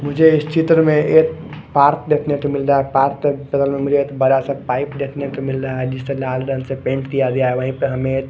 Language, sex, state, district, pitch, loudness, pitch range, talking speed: Hindi, male, Bihar, West Champaran, 140 Hz, -17 LUFS, 135-145 Hz, 260 wpm